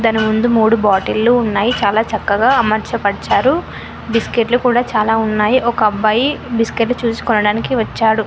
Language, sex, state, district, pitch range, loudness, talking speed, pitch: Telugu, female, Telangana, Mahabubabad, 215-235 Hz, -15 LUFS, 130 wpm, 225 Hz